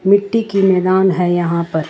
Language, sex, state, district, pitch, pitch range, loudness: Hindi, female, Jharkhand, Ranchi, 185 Hz, 175-195 Hz, -15 LUFS